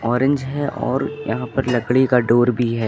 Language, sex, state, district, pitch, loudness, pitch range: Hindi, male, Uttar Pradesh, Lucknow, 125 Hz, -19 LUFS, 120-135 Hz